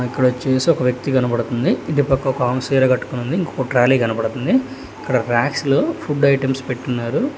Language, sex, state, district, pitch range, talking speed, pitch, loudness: Telugu, male, Telangana, Hyderabad, 125-140 Hz, 145 wpm, 130 Hz, -18 LUFS